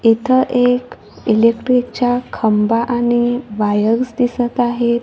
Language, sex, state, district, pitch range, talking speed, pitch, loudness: Marathi, female, Maharashtra, Gondia, 230-245 Hz, 95 wpm, 240 Hz, -16 LUFS